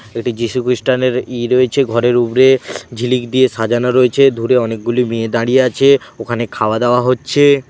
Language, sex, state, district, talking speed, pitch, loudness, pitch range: Bengali, male, West Bengal, Dakshin Dinajpur, 155 wpm, 125 Hz, -14 LUFS, 115-130 Hz